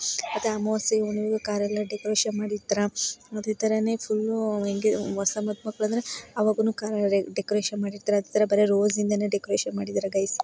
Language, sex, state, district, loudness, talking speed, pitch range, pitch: Kannada, female, Karnataka, Bijapur, -26 LUFS, 150 wpm, 205-215 Hz, 210 Hz